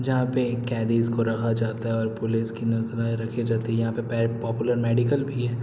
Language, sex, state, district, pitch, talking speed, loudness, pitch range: Hindi, male, Bihar, Araria, 115 Hz, 215 wpm, -25 LUFS, 115-120 Hz